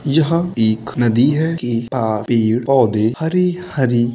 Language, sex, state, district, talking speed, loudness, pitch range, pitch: Hindi, male, Uttar Pradesh, Muzaffarnagar, 145 wpm, -17 LUFS, 115-160 Hz, 125 Hz